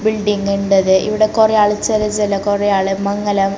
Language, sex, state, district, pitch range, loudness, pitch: Malayalam, female, Kerala, Kasaragod, 200-215 Hz, -15 LUFS, 205 Hz